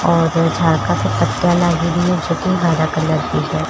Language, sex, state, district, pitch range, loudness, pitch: Marwari, female, Rajasthan, Churu, 155-175 Hz, -16 LUFS, 165 Hz